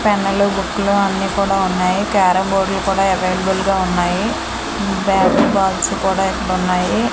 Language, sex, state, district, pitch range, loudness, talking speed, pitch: Telugu, female, Andhra Pradesh, Manyam, 185-200 Hz, -16 LUFS, 160 wpm, 195 Hz